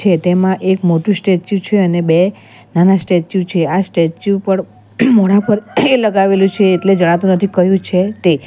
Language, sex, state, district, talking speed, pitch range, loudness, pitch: Gujarati, female, Gujarat, Valsad, 165 wpm, 175-195 Hz, -13 LUFS, 190 Hz